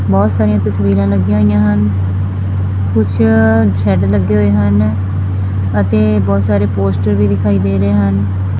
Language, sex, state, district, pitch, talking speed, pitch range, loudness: Punjabi, female, Punjab, Fazilka, 100 Hz, 140 wpm, 95-105 Hz, -13 LUFS